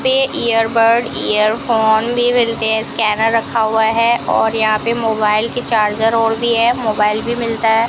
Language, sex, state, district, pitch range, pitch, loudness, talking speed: Hindi, female, Rajasthan, Bikaner, 220-235 Hz, 225 Hz, -14 LUFS, 175 wpm